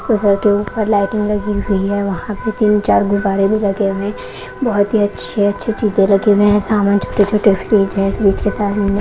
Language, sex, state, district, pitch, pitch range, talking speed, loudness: Hindi, female, Haryana, Rohtak, 205 Hz, 200-210 Hz, 220 wpm, -15 LUFS